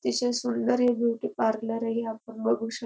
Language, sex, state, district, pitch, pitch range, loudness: Marathi, female, Maharashtra, Dhule, 230 Hz, 225-240 Hz, -27 LUFS